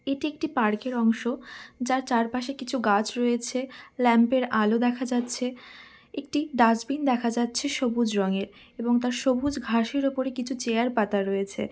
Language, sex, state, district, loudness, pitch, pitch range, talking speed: Bengali, female, West Bengal, Dakshin Dinajpur, -26 LUFS, 245 Hz, 230-265 Hz, 170 wpm